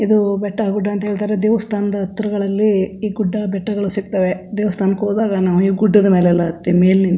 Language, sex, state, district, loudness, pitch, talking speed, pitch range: Kannada, female, Karnataka, Chamarajanagar, -17 LUFS, 205 Hz, 160 wpm, 190-210 Hz